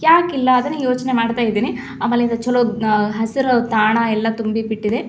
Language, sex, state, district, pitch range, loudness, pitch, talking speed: Kannada, female, Karnataka, Gulbarga, 220-250 Hz, -18 LUFS, 230 Hz, 155 wpm